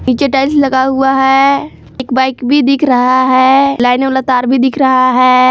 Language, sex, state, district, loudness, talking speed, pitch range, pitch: Hindi, female, Jharkhand, Palamu, -10 LUFS, 195 wpm, 255-270 Hz, 260 Hz